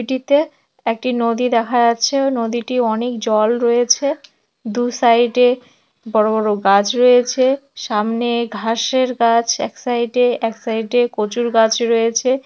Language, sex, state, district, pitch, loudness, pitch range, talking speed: Bengali, female, West Bengal, Dakshin Dinajpur, 240 Hz, -16 LUFS, 230-250 Hz, 135 wpm